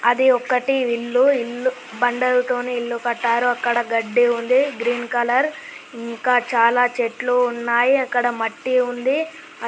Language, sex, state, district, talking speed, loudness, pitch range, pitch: Telugu, male, Andhra Pradesh, Guntur, 120 wpm, -19 LUFS, 235-255 Hz, 245 Hz